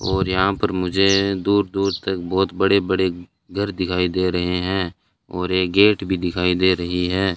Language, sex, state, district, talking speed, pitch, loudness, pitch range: Hindi, male, Rajasthan, Bikaner, 170 wpm, 95 Hz, -20 LUFS, 90-100 Hz